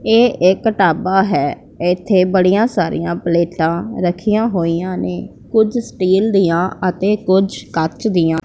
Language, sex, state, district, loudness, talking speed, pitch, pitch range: Punjabi, female, Punjab, Pathankot, -16 LUFS, 130 wpm, 185 Hz, 170-210 Hz